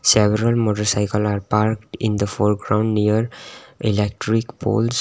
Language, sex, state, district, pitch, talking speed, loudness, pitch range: English, male, Sikkim, Gangtok, 110 Hz, 120 wpm, -20 LUFS, 105-115 Hz